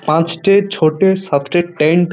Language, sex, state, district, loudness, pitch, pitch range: Bengali, male, West Bengal, Purulia, -14 LUFS, 170 Hz, 155-190 Hz